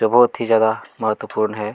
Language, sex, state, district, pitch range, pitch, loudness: Hindi, male, Chhattisgarh, Kabirdham, 110-115 Hz, 110 Hz, -19 LUFS